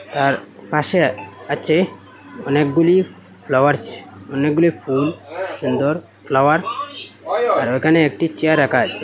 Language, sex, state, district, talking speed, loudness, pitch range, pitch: Bengali, male, Assam, Hailakandi, 105 wpm, -18 LUFS, 140-165 Hz, 150 Hz